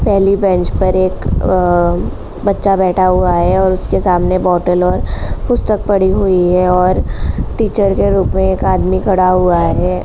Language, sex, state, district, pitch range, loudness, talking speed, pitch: Hindi, female, Uttar Pradesh, Jalaun, 180-195 Hz, -13 LUFS, 165 wpm, 185 Hz